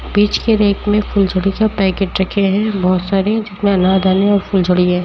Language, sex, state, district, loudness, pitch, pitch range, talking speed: Hindi, female, Uttar Pradesh, Jyotiba Phule Nagar, -15 LUFS, 195 Hz, 190-205 Hz, 200 wpm